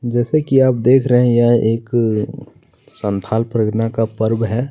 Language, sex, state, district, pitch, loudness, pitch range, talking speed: Hindi, male, Chhattisgarh, Kabirdham, 120 Hz, -16 LUFS, 110-125 Hz, 155 wpm